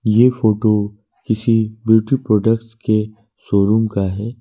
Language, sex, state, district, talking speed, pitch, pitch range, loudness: Hindi, male, Jharkhand, Ranchi, 120 wpm, 110 Hz, 105-115 Hz, -17 LUFS